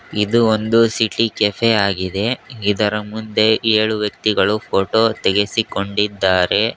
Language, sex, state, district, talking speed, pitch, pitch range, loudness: Kannada, male, Karnataka, Koppal, 95 wpm, 110 Hz, 105-115 Hz, -17 LUFS